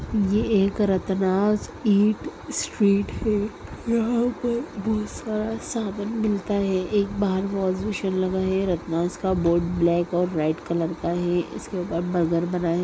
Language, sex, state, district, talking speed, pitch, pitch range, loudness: Hindi, female, Bihar, Sitamarhi, 165 wpm, 195 Hz, 175-210 Hz, -24 LUFS